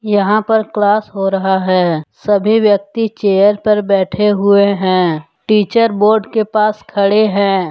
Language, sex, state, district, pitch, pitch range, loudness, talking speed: Hindi, male, Jharkhand, Deoghar, 205 Hz, 195-215 Hz, -13 LUFS, 150 wpm